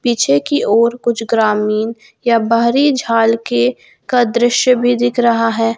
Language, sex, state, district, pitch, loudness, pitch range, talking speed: Hindi, female, Jharkhand, Garhwa, 230 Hz, -14 LUFS, 225-245 Hz, 155 wpm